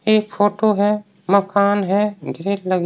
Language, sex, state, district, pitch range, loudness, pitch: Hindi, male, Uttar Pradesh, Varanasi, 195-210 Hz, -18 LUFS, 200 Hz